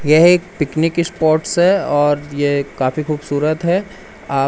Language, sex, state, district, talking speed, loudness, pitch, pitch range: Hindi, male, Madhya Pradesh, Umaria, 145 wpm, -16 LUFS, 155 Hz, 145-175 Hz